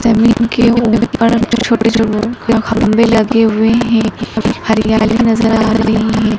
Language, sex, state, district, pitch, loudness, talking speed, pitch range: Hindi, male, Madhya Pradesh, Dhar, 225 Hz, -12 LUFS, 130 wpm, 220-230 Hz